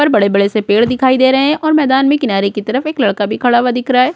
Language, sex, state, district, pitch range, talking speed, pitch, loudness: Hindi, female, Uttar Pradesh, Budaun, 210-275 Hz, 330 wpm, 255 Hz, -13 LUFS